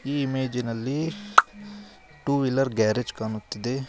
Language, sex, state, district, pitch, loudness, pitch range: Kannada, male, Karnataka, Koppal, 130 Hz, -25 LUFS, 115-145 Hz